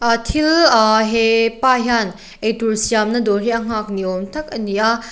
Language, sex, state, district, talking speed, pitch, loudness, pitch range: Mizo, female, Mizoram, Aizawl, 190 wpm, 225 Hz, -16 LUFS, 215-235 Hz